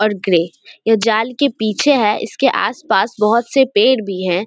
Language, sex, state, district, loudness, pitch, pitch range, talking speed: Hindi, female, Bihar, Samastipur, -15 LUFS, 220 Hz, 205-260 Hz, 190 wpm